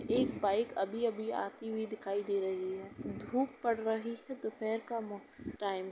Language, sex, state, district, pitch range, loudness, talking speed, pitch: Hindi, female, Uttar Pradesh, Jalaun, 200-235 Hz, -36 LUFS, 170 wpm, 220 Hz